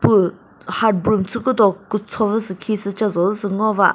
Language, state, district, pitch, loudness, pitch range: Chakhesang, Nagaland, Dimapur, 210 Hz, -19 LUFS, 195-215 Hz